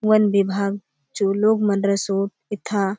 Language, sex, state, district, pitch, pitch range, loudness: Halbi, female, Chhattisgarh, Bastar, 200 Hz, 195-210 Hz, -21 LUFS